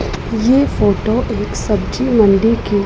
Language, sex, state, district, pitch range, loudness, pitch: Hindi, female, Punjab, Pathankot, 205-250 Hz, -15 LUFS, 225 Hz